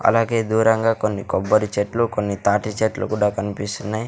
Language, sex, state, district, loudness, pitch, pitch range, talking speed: Telugu, male, Andhra Pradesh, Sri Satya Sai, -20 LUFS, 105 Hz, 105-110 Hz, 145 wpm